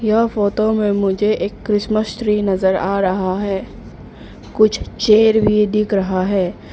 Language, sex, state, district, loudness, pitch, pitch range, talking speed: Hindi, female, Arunachal Pradesh, Papum Pare, -17 LUFS, 210 Hz, 195-215 Hz, 150 wpm